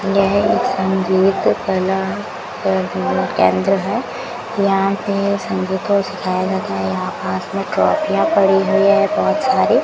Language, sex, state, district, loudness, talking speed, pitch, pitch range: Hindi, female, Rajasthan, Bikaner, -17 LUFS, 140 wpm, 195 Hz, 185-200 Hz